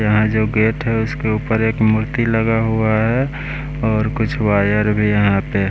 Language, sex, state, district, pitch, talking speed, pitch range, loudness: Hindi, male, Bihar, West Champaran, 110 Hz, 190 wpm, 105-115 Hz, -17 LUFS